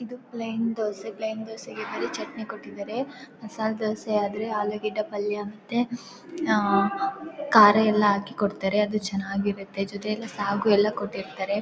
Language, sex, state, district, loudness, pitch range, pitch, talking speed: Kannada, female, Karnataka, Chamarajanagar, -26 LUFS, 205-230 Hz, 215 Hz, 120 wpm